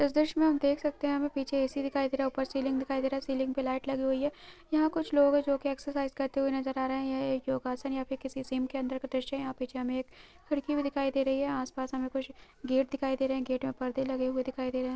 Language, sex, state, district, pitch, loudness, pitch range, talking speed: Hindi, female, Uttarakhand, Uttarkashi, 270 Hz, -32 LUFS, 265-280 Hz, 320 wpm